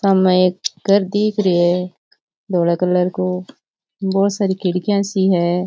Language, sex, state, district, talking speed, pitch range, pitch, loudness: Rajasthani, male, Rajasthan, Churu, 150 wpm, 180-200 Hz, 185 Hz, -17 LUFS